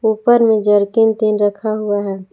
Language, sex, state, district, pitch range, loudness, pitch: Hindi, female, Jharkhand, Palamu, 205-220 Hz, -15 LUFS, 215 Hz